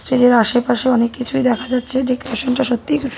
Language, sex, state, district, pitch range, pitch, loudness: Bengali, female, West Bengal, North 24 Parganas, 245-260 Hz, 250 Hz, -16 LUFS